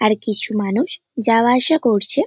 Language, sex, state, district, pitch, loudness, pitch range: Bengali, male, West Bengal, North 24 Parganas, 230 Hz, -18 LUFS, 215-255 Hz